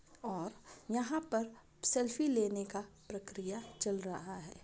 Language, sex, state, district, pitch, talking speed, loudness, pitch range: Hindi, female, Chhattisgarh, Raigarh, 205 Hz, 130 wpm, -38 LUFS, 195-235 Hz